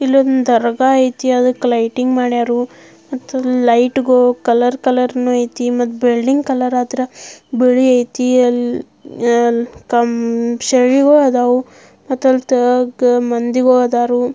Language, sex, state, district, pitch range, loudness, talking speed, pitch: Kannada, female, Karnataka, Belgaum, 240-255 Hz, -14 LUFS, 110 wpm, 250 Hz